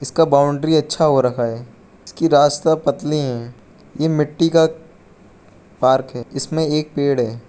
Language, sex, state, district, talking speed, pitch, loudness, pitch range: Hindi, male, Arunachal Pradesh, Lower Dibang Valley, 150 wpm, 145 Hz, -17 LUFS, 120-160 Hz